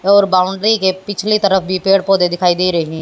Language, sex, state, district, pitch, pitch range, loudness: Hindi, female, Haryana, Jhajjar, 190 Hz, 180-200 Hz, -14 LUFS